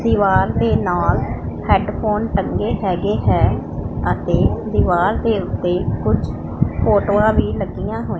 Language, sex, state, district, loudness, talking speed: Punjabi, female, Punjab, Pathankot, -18 LUFS, 115 wpm